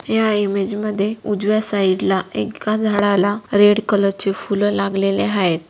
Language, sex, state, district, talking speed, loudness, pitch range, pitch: Marathi, female, Maharashtra, Dhule, 145 wpm, -18 LUFS, 195-210 Hz, 200 Hz